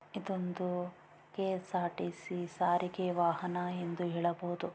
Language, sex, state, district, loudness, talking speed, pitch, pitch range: Kannada, female, Karnataka, Bijapur, -36 LUFS, 75 wpm, 180 Hz, 175-180 Hz